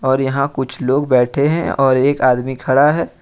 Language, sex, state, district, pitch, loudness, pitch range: Hindi, male, Jharkhand, Ranchi, 135 Hz, -15 LUFS, 130-145 Hz